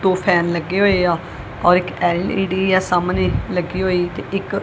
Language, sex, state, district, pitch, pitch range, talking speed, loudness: Punjabi, female, Punjab, Kapurthala, 180 Hz, 175-190 Hz, 170 wpm, -18 LUFS